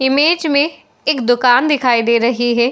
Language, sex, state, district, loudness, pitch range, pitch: Hindi, female, Uttar Pradesh, Muzaffarnagar, -14 LUFS, 240-295 Hz, 255 Hz